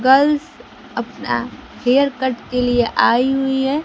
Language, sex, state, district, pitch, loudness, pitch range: Hindi, female, Bihar, Kaimur, 265 Hz, -18 LUFS, 250-275 Hz